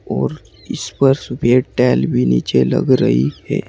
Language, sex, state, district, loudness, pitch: Hindi, male, Uttar Pradesh, Saharanpur, -16 LUFS, 120 Hz